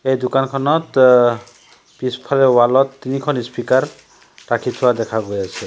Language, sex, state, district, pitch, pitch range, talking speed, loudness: Assamese, male, Assam, Sonitpur, 130 Hz, 120-135 Hz, 135 wpm, -16 LUFS